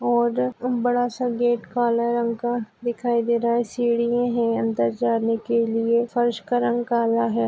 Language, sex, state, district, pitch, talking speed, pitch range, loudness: Hindi, male, Maharashtra, Pune, 235 Hz, 175 wpm, 230-240 Hz, -22 LUFS